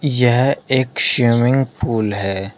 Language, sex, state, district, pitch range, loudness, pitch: Hindi, male, Uttar Pradesh, Shamli, 105-130 Hz, -16 LUFS, 120 Hz